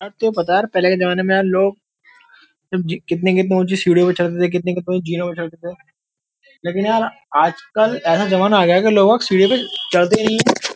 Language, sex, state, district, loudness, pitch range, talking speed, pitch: Hindi, male, Uttar Pradesh, Jyotiba Phule Nagar, -16 LUFS, 180-215 Hz, 225 wpm, 190 Hz